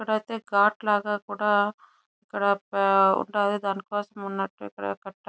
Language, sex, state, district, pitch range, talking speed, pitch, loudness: Telugu, female, Andhra Pradesh, Chittoor, 195-210 Hz, 125 wpm, 200 Hz, -25 LUFS